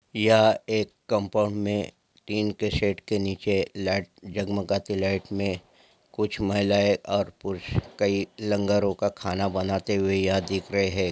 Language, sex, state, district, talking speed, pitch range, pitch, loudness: Angika, male, Bihar, Madhepura, 145 wpm, 95-105 Hz, 100 Hz, -26 LUFS